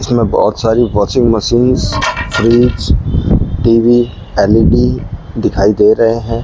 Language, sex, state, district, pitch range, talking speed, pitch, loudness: Hindi, male, Rajasthan, Bikaner, 105-120 Hz, 110 wpm, 115 Hz, -12 LUFS